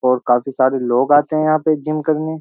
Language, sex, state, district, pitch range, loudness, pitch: Hindi, male, Uttar Pradesh, Jyotiba Phule Nagar, 130-155 Hz, -16 LUFS, 145 Hz